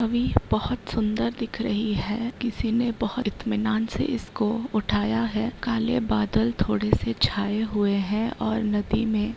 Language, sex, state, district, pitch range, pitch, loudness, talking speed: Hindi, female, Uttar Pradesh, Hamirpur, 205-230 Hz, 220 Hz, -25 LUFS, 160 wpm